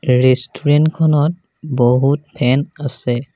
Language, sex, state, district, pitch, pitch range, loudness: Assamese, male, Assam, Sonitpur, 140 Hz, 125-155 Hz, -16 LUFS